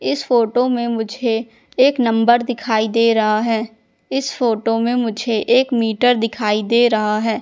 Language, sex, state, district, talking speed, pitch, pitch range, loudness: Hindi, female, Madhya Pradesh, Katni, 160 wpm, 230 Hz, 225-245 Hz, -17 LUFS